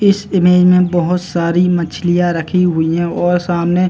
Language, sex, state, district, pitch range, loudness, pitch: Hindi, male, Uttar Pradesh, Muzaffarnagar, 170-180 Hz, -14 LUFS, 175 Hz